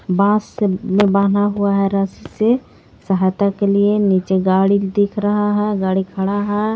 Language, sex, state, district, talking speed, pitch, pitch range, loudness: Hindi, female, Jharkhand, Garhwa, 170 wpm, 200 Hz, 195-205 Hz, -17 LUFS